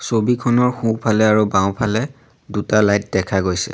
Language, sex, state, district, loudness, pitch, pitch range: Assamese, male, Assam, Sonitpur, -18 LUFS, 110 Hz, 100-120 Hz